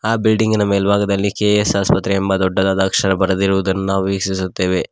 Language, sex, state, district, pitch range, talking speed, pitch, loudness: Kannada, male, Karnataka, Koppal, 95-100 Hz, 135 wpm, 95 Hz, -16 LUFS